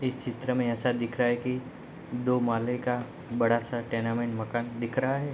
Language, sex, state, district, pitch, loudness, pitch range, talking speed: Hindi, male, Bihar, Gopalganj, 120 Hz, -29 LUFS, 115-125 Hz, 200 wpm